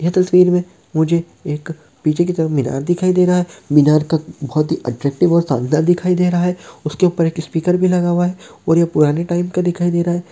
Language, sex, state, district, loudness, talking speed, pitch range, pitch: Hindi, male, Uttar Pradesh, Deoria, -16 LUFS, 230 wpm, 155-180 Hz, 170 Hz